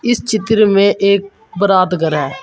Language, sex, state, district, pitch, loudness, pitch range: Hindi, male, Uttar Pradesh, Saharanpur, 200 Hz, -13 LUFS, 180-215 Hz